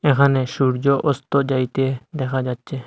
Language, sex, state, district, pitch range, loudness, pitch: Bengali, male, Assam, Hailakandi, 130-140 Hz, -20 LUFS, 135 Hz